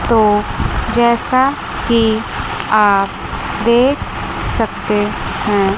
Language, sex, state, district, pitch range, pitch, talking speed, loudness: Hindi, female, Chandigarh, Chandigarh, 205-235 Hz, 220 Hz, 75 wpm, -15 LUFS